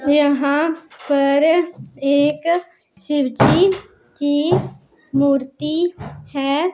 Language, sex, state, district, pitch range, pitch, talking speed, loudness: Hindi, female, Punjab, Pathankot, 280-335 Hz, 295 Hz, 60 wpm, -18 LUFS